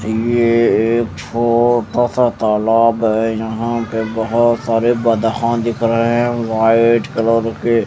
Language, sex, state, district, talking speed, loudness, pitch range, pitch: Hindi, male, Chandigarh, Chandigarh, 135 wpm, -15 LUFS, 110-120 Hz, 115 Hz